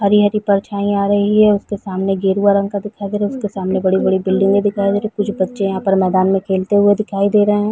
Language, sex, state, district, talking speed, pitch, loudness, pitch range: Hindi, female, Chhattisgarh, Raigarh, 240 wpm, 200 Hz, -16 LUFS, 195-205 Hz